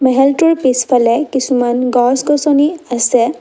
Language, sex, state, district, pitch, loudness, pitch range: Assamese, female, Assam, Kamrup Metropolitan, 260 Hz, -13 LUFS, 245-290 Hz